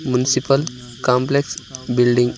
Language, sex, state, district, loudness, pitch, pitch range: Telugu, male, Andhra Pradesh, Sri Satya Sai, -19 LUFS, 125 Hz, 125-135 Hz